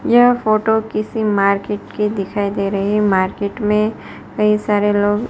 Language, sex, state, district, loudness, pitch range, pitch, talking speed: Hindi, female, Gujarat, Gandhinagar, -17 LUFS, 200-215 Hz, 210 Hz, 160 wpm